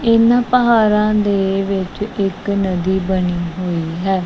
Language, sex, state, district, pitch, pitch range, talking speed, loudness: Punjabi, female, Punjab, Kapurthala, 195 Hz, 185-210 Hz, 125 wpm, -16 LUFS